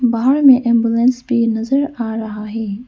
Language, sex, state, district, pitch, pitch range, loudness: Hindi, female, Arunachal Pradesh, Lower Dibang Valley, 235 Hz, 225-250 Hz, -15 LUFS